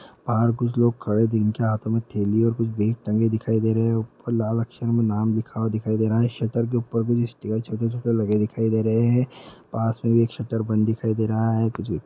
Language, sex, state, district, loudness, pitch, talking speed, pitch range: Hindi, male, Uttar Pradesh, Hamirpur, -23 LUFS, 115 Hz, 230 wpm, 110-115 Hz